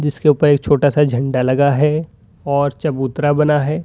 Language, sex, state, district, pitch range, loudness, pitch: Hindi, male, Uttar Pradesh, Lalitpur, 140-150 Hz, -16 LUFS, 145 Hz